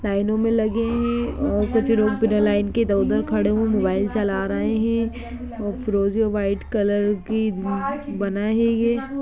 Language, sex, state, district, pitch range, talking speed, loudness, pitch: Hindi, female, Bihar, Gaya, 205-230 Hz, 175 wpm, -22 LUFS, 215 Hz